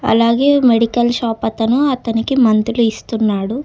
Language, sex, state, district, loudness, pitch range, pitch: Telugu, female, Telangana, Hyderabad, -15 LUFS, 225-250 Hz, 230 Hz